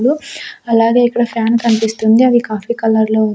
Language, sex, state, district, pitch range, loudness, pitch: Telugu, female, Andhra Pradesh, Sri Satya Sai, 220-240 Hz, -13 LUFS, 230 Hz